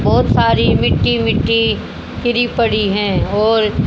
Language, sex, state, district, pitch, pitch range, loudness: Hindi, female, Haryana, Jhajjar, 220 Hz, 210-235 Hz, -15 LUFS